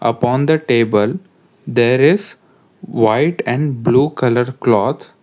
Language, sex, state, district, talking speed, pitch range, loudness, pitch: English, male, Karnataka, Bangalore, 115 wpm, 115-135 Hz, -15 LUFS, 125 Hz